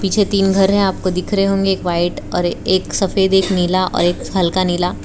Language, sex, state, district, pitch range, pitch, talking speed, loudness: Hindi, female, Gujarat, Valsad, 180-195 Hz, 190 Hz, 225 wpm, -16 LUFS